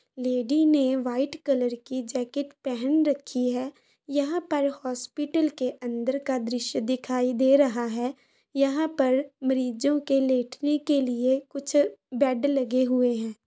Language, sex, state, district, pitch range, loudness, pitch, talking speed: Hindi, female, Bihar, Saran, 250-285 Hz, -26 LUFS, 265 Hz, 145 wpm